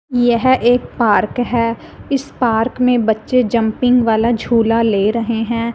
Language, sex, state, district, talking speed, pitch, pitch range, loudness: Hindi, female, Punjab, Fazilka, 145 wpm, 235 Hz, 225-245 Hz, -15 LUFS